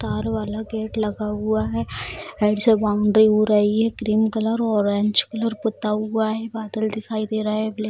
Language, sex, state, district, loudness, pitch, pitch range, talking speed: Hindi, female, Bihar, Bhagalpur, -21 LUFS, 215 Hz, 210-220 Hz, 230 wpm